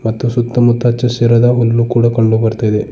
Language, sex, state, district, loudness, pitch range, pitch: Kannada, male, Karnataka, Bidar, -12 LUFS, 115-120 Hz, 120 Hz